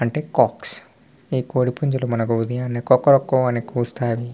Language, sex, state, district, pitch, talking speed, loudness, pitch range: Telugu, male, Telangana, Nalgonda, 125 Hz, 150 wpm, -20 LUFS, 120-130 Hz